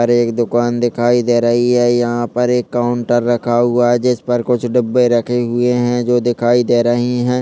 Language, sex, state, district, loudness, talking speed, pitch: Hindi, male, Chhattisgarh, Kabirdham, -15 LUFS, 210 wpm, 120 Hz